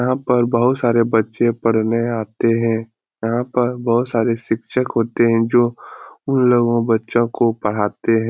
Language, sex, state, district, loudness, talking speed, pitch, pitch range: Hindi, male, Bihar, Lakhisarai, -18 LUFS, 160 wpm, 115 Hz, 115-120 Hz